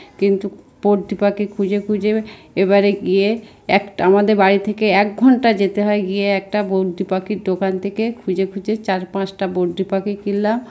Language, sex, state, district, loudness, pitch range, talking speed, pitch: Bengali, female, West Bengal, North 24 Parganas, -18 LUFS, 195-210 Hz, 150 wpm, 200 Hz